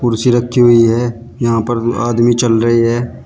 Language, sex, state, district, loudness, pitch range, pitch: Hindi, male, Uttar Pradesh, Shamli, -13 LUFS, 115-120 Hz, 120 Hz